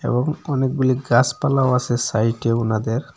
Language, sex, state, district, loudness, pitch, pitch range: Bengali, male, Assam, Hailakandi, -20 LUFS, 125 Hz, 115-135 Hz